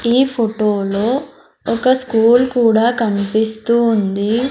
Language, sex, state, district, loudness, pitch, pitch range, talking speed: Telugu, female, Andhra Pradesh, Sri Satya Sai, -15 LUFS, 230 Hz, 215-245 Hz, 105 wpm